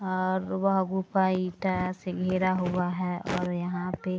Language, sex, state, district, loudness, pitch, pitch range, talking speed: Hindi, female, Bihar, Araria, -28 LUFS, 185 Hz, 180-185 Hz, 170 wpm